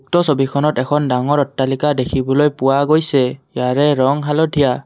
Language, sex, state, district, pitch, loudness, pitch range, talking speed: Assamese, male, Assam, Kamrup Metropolitan, 140 Hz, -16 LUFS, 130-150 Hz, 135 wpm